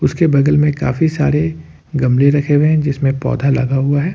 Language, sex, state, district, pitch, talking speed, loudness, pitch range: Hindi, male, Jharkhand, Ranchi, 145 Hz, 200 wpm, -15 LUFS, 140-155 Hz